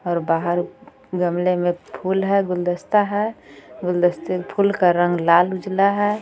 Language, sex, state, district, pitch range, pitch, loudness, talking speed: Hindi, female, Jharkhand, Garhwa, 175-200 Hz, 180 Hz, -20 LUFS, 145 wpm